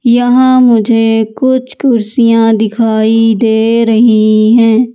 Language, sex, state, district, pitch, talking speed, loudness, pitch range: Hindi, female, Madhya Pradesh, Katni, 230 Hz, 95 wpm, -9 LUFS, 220-240 Hz